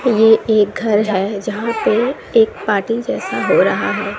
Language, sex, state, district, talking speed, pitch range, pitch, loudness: Hindi, female, Bihar, West Champaran, 170 wpm, 210-230 Hz, 220 Hz, -16 LUFS